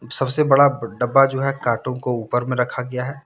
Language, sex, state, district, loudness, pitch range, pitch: Hindi, male, Jharkhand, Deoghar, -19 LUFS, 125-135 Hz, 125 Hz